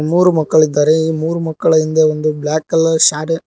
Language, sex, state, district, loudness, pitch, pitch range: Kannada, male, Karnataka, Koppal, -14 LUFS, 160 Hz, 155-165 Hz